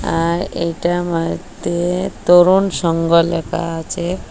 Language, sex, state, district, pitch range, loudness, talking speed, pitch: Bengali, female, Assam, Hailakandi, 165-175 Hz, -17 LUFS, 110 wpm, 170 Hz